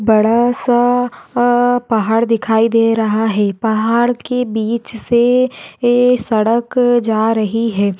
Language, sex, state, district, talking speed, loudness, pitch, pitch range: Hindi, female, Maharashtra, Aurangabad, 120 wpm, -14 LUFS, 230 Hz, 220-245 Hz